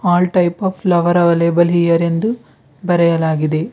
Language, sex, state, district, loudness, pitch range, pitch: Kannada, female, Karnataka, Bidar, -15 LUFS, 170-180 Hz, 170 Hz